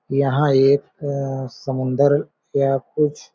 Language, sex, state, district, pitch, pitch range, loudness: Hindi, male, Chhattisgarh, Balrampur, 140 Hz, 135-145 Hz, -20 LUFS